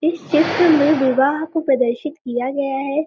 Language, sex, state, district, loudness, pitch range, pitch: Hindi, female, Uttar Pradesh, Varanasi, -18 LUFS, 270-310 Hz, 290 Hz